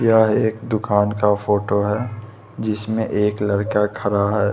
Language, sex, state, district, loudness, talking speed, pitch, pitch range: Hindi, male, Bihar, West Champaran, -20 LUFS, 145 wpm, 105 Hz, 105-110 Hz